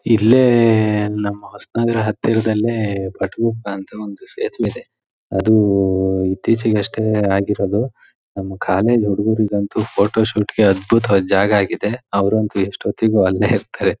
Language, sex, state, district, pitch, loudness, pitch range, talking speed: Kannada, male, Karnataka, Shimoga, 105 Hz, -17 LUFS, 100-110 Hz, 120 wpm